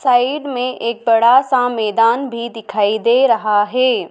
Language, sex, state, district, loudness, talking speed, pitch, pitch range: Hindi, female, Madhya Pradesh, Dhar, -15 LUFS, 160 wpm, 235 Hz, 220-255 Hz